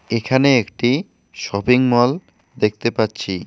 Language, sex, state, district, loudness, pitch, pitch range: Bengali, male, West Bengal, Alipurduar, -18 LUFS, 120 Hz, 110-130 Hz